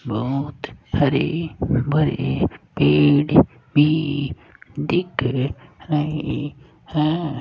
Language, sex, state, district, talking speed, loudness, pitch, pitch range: Hindi, male, Rajasthan, Jaipur, 65 wpm, -21 LUFS, 145 Hz, 130-155 Hz